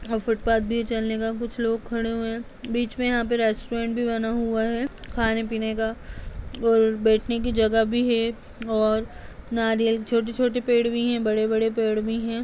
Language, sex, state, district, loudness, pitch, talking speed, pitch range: Hindi, female, Uttar Pradesh, Jalaun, -24 LUFS, 230 Hz, 195 wpm, 225-235 Hz